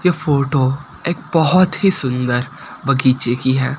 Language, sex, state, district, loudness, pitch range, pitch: Hindi, male, Gujarat, Gandhinagar, -16 LUFS, 130-165 Hz, 140 Hz